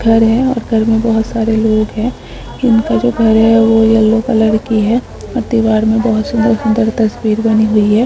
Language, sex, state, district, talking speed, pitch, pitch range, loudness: Hindi, female, Chhattisgarh, Kabirdham, 185 wpm, 225 Hz, 220-230 Hz, -12 LUFS